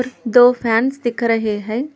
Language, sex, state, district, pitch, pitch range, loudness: Hindi, female, Telangana, Hyderabad, 240 Hz, 225-250 Hz, -16 LUFS